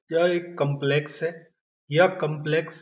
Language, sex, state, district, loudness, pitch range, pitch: Hindi, male, Bihar, Saran, -25 LUFS, 150-170 Hz, 160 Hz